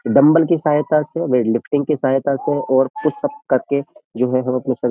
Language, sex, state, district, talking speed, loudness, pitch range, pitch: Hindi, male, Uttar Pradesh, Jyotiba Phule Nagar, 230 wpm, -18 LUFS, 130-155 Hz, 140 Hz